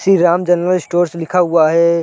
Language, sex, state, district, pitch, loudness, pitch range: Hindi, male, Chhattisgarh, Sarguja, 175 Hz, -14 LUFS, 170-180 Hz